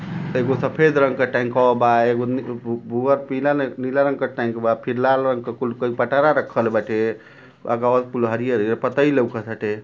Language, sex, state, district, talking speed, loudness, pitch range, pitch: Bhojpuri, male, Uttar Pradesh, Ghazipur, 200 wpm, -20 LUFS, 120-135 Hz, 125 Hz